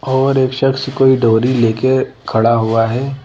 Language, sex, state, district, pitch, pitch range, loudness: Hindi, female, Madhya Pradesh, Bhopal, 130 Hz, 115-135 Hz, -14 LUFS